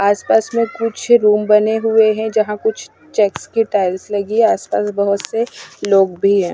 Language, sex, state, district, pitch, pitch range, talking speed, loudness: Hindi, female, Punjab, Kapurthala, 210 Hz, 200-225 Hz, 175 wpm, -16 LUFS